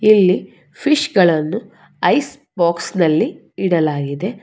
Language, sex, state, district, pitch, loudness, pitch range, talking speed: Kannada, female, Karnataka, Bangalore, 180 Hz, -17 LUFS, 160-205 Hz, 70 wpm